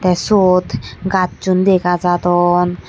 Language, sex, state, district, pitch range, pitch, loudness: Chakma, male, Tripura, Dhalai, 175-185 Hz, 180 Hz, -14 LUFS